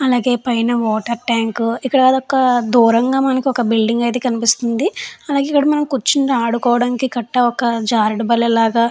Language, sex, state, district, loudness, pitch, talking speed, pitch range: Telugu, female, Andhra Pradesh, Chittoor, -16 LUFS, 240 Hz, 140 wpm, 230-260 Hz